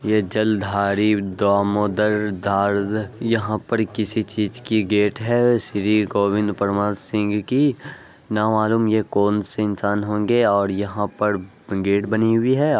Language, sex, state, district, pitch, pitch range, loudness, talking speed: Angika, male, Bihar, Araria, 105 Hz, 100-110 Hz, -20 LUFS, 140 wpm